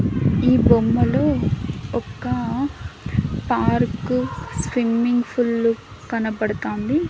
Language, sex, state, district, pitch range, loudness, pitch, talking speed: Telugu, female, Andhra Pradesh, Annamaya, 210-245 Hz, -21 LUFS, 230 Hz, 60 wpm